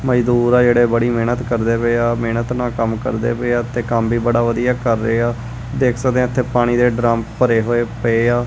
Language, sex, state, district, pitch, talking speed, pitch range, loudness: Punjabi, male, Punjab, Kapurthala, 120 Hz, 235 wpm, 115-120 Hz, -17 LUFS